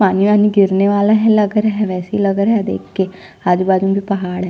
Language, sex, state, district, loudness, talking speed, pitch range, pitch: Hindi, female, Chhattisgarh, Jashpur, -15 LUFS, 255 wpm, 190-210 Hz, 200 Hz